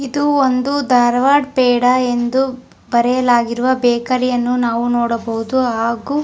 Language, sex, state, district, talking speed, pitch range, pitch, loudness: Kannada, female, Karnataka, Dharwad, 115 wpm, 240-260 Hz, 250 Hz, -15 LUFS